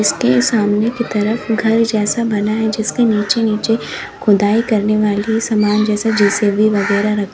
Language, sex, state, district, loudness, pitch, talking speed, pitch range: Hindi, female, Uttar Pradesh, Lalitpur, -15 LUFS, 215 Hz, 155 wpm, 205-225 Hz